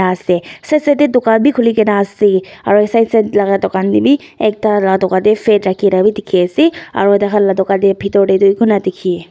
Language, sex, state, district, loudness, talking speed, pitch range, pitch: Nagamese, female, Nagaland, Dimapur, -13 LUFS, 220 wpm, 190-220 Hz, 200 Hz